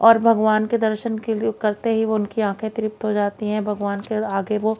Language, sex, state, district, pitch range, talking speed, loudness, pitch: Hindi, female, Haryana, Jhajjar, 210-220 Hz, 225 wpm, -21 LUFS, 215 Hz